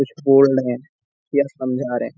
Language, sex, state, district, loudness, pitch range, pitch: Hindi, male, Bihar, Saharsa, -18 LUFS, 125-140 Hz, 135 Hz